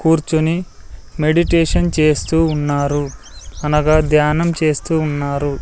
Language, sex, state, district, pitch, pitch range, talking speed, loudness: Telugu, male, Andhra Pradesh, Sri Satya Sai, 155 Hz, 145-160 Hz, 85 wpm, -16 LUFS